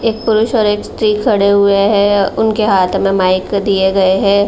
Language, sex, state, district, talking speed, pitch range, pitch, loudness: Hindi, female, Uttar Pradesh, Jalaun, 200 wpm, 195-215 Hz, 200 Hz, -12 LUFS